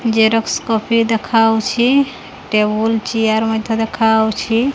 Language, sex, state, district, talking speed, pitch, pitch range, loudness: Odia, female, Odisha, Khordha, 90 wpm, 225 Hz, 220-230 Hz, -15 LUFS